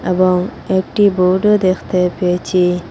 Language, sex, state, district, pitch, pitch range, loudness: Bengali, female, Assam, Hailakandi, 185 Hz, 180-190 Hz, -15 LUFS